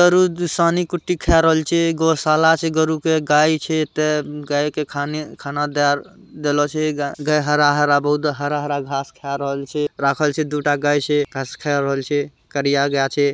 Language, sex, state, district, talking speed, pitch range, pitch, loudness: Hindi, male, Bihar, Araria, 100 wpm, 145-155 Hz, 150 Hz, -19 LUFS